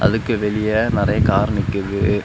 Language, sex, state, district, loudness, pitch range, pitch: Tamil, male, Tamil Nadu, Kanyakumari, -18 LUFS, 100-110 Hz, 105 Hz